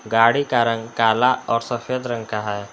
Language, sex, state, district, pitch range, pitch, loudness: Hindi, male, Jharkhand, Palamu, 115-125 Hz, 115 Hz, -20 LUFS